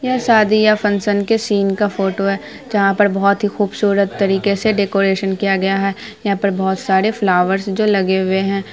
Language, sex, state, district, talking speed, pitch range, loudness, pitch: Hindi, female, Bihar, Araria, 200 wpm, 195-210 Hz, -16 LUFS, 200 Hz